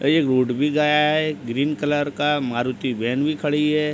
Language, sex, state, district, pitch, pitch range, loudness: Hindi, male, Uttar Pradesh, Deoria, 145 Hz, 130-150 Hz, -21 LUFS